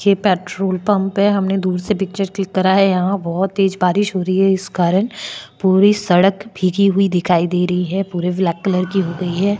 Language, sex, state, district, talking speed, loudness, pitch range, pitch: Hindi, female, Maharashtra, Chandrapur, 220 wpm, -17 LUFS, 180-195 Hz, 190 Hz